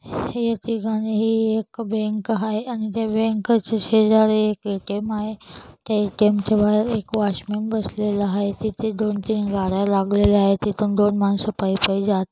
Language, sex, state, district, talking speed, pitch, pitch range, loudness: Marathi, female, Maharashtra, Chandrapur, 150 wpm, 215 Hz, 205-220 Hz, -21 LUFS